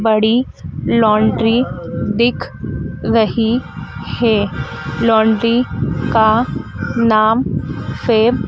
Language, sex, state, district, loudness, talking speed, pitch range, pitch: Hindi, female, Madhya Pradesh, Dhar, -16 LUFS, 65 wpm, 215-230 Hz, 220 Hz